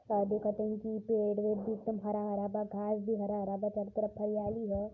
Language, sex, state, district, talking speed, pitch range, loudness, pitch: Hindi, male, Uttar Pradesh, Varanasi, 245 wpm, 205-215 Hz, -35 LUFS, 210 Hz